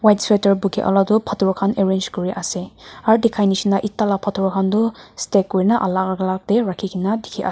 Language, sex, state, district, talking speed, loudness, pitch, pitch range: Nagamese, female, Nagaland, Kohima, 190 wpm, -19 LUFS, 195 Hz, 190-210 Hz